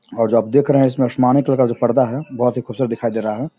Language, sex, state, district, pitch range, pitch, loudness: Hindi, male, Bihar, Samastipur, 120-135 Hz, 125 Hz, -17 LUFS